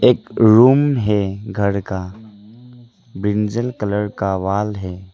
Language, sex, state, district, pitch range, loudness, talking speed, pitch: Hindi, male, Arunachal Pradesh, Lower Dibang Valley, 100-115 Hz, -17 LUFS, 115 wpm, 105 Hz